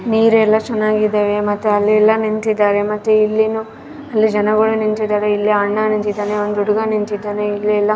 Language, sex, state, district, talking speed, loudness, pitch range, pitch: Kannada, female, Karnataka, Raichur, 135 wpm, -16 LUFS, 210-220 Hz, 215 Hz